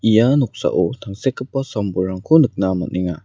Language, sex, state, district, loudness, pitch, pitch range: Garo, male, Meghalaya, West Garo Hills, -19 LUFS, 110 Hz, 95-135 Hz